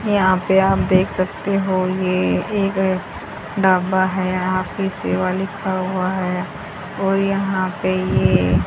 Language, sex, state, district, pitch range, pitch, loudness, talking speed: Hindi, female, Haryana, Rohtak, 185-195 Hz, 185 Hz, -19 LUFS, 145 wpm